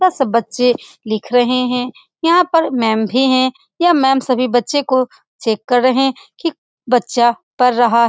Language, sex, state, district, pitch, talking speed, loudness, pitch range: Hindi, female, Bihar, Saran, 255 Hz, 170 wpm, -15 LUFS, 240-270 Hz